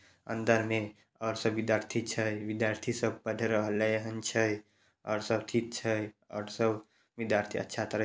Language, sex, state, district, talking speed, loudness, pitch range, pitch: Maithili, male, Bihar, Samastipur, 165 wpm, -33 LUFS, 105-115 Hz, 110 Hz